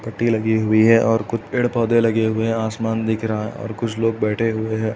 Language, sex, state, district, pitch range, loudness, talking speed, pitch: Hindi, male, Uttar Pradesh, Etah, 110-115 Hz, -19 LUFS, 240 wpm, 110 Hz